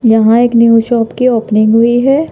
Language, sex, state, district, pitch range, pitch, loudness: Hindi, female, Madhya Pradesh, Bhopal, 225-245 Hz, 230 Hz, -9 LUFS